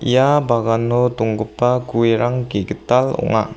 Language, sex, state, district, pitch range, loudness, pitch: Garo, female, Meghalaya, South Garo Hills, 115-125 Hz, -17 LUFS, 120 Hz